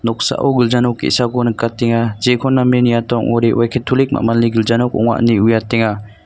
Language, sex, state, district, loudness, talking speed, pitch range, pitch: Garo, male, Meghalaya, North Garo Hills, -15 LUFS, 165 wpm, 115-125 Hz, 115 Hz